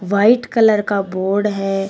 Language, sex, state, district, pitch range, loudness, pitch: Hindi, female, Uttar Pradesh, Shamli, 195-215 Hz, -16 LUFS, 200 Hz